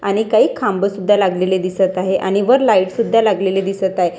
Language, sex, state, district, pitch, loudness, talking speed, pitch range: Marathi, female, Maharashtra, Washim, 195 Hz, -16 LUFS, 185 wpm, 190-210 Hz